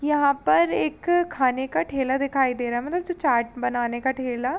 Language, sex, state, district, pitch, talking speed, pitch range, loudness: Hindi, female, Uttar Pradesh, Jalaun, 265 Hz, 220 wpm, 245-290 Hz, -23 LUFS